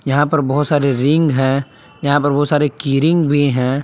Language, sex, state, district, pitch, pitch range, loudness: Hindi, male, Jharkhand, Palamu, 145 Hz, 135-150 Hz, -15 LUFS